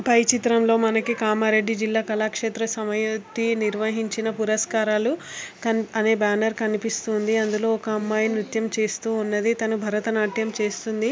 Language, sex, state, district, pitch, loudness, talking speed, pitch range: Telugu, female, Telangana, Karimnagar, 220 Hz, -23 LUFS, 125 wpm, 215-225 Hz